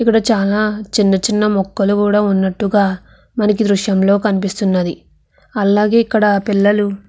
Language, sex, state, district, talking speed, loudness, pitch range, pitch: Telugu, female, Andhra Pradesh, Krishna, 60 wpm, -15 LUFS, 195-210 Hz, 205 Hz